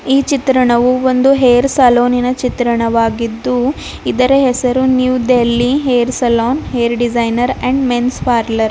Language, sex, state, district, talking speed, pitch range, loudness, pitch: Kannada, female, Karnataka, Bidar, 130 wpm, 240-255 Hz, -13 LUFS, 250 Hz